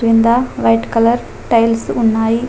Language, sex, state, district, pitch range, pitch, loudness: Telugu, female, Telangana, Adilabad, 225-235 Hz, 230 Hz, -14 LUFS